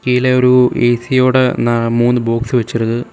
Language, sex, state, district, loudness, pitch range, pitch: Tamil, male, Tamil Nadu, Kanyakumari, -13 LUFS, 120-125 Hz, 125 Hz